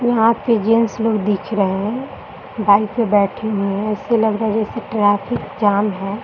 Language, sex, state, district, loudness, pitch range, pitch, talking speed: Hindi, female, Bihar, Jahanabad, -18 LUFS, 205-225 Hz, 215 Hz, 200 wpm